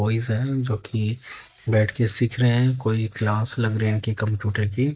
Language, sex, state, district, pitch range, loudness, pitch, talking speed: Hindi, male, Haryana, Jhajjar, 110-120 Hz, -20 LUFS, 110 Hz, 195 wpm